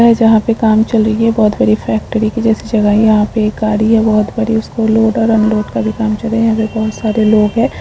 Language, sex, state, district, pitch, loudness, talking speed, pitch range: Hindi, female, Jharkhand, Sahebganj, 220 Hz, -12 LUFS, 290 wpm, 215-225 Hz